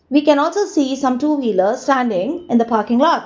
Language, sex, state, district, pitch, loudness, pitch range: English, female, Gujarat, Valsad, 275 Hz, -17 LUFS, 235-300 Hz